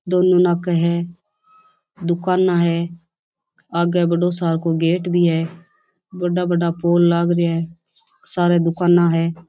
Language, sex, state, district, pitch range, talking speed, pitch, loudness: Rajasthani, female, Rajasthan, Churu, 170-180 Hz, 120 wpm, 175 Hz, -18 LUFS